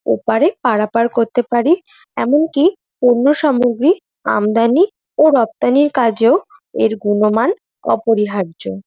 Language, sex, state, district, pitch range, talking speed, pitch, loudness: Bengali, female, West Bengal, North 24 Parganas, 220-300 Hz, 110 wpm, 245 Hz, -15 LUFS